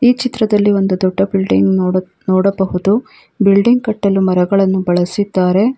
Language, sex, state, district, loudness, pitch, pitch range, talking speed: Kannada, female, Karnataka, Bangalore, -14 LUFS, 195 Hz, 185-205 Hz, 115 wpm